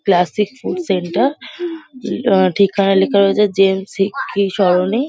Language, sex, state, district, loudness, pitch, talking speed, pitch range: Bengali, female, West Bengal, Kolkata, -16 LUFS, 195 Hz, 155 wpm, 190-210 Hz